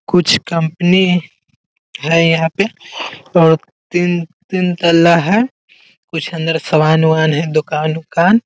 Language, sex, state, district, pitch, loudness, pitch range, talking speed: Hindi, male, Bihar, Muzaffarpur, 165 Hz, -14 LUFS, 160-180 Hz, 105 wpm